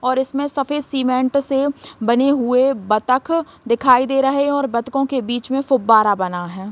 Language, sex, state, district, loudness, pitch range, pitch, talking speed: Hindi, female, Bihar, Saran, -18 LUFS, 235-275 Hz, 260 Hz, 180 wpm